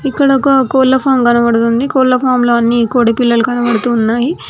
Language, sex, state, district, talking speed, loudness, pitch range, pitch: Telugu, female, Telangana, Mahabubabad, 175 wpm, -11 LUFS, 235-265 Hz, 245 Hz